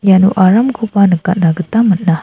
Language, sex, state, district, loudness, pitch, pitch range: Garo, female, Meghalaya, South Garo Hills, -11 LUFS, 190 Hz, 180-210 Hz